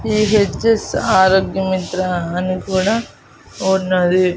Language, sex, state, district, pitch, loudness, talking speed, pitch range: Telugu, female, Andhra Pradesh, Annamaya, 190 Hz, -16 LUFS, 95 wpm, 185-205 Hz